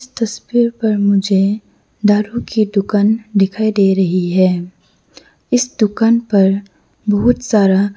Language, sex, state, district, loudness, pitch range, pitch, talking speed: Hindi, female, Arunachal Pradesh, Lower Dibang Valley, -15 LUFS, 195-225 Hz, 210 Hz, 120 wpm